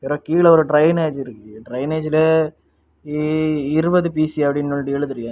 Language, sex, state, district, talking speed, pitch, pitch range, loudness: Tamil, male, Tamil Nadu, Kanyakumari, 135 wpm, 150 Hz, 140-160 Hz, -18 LUFS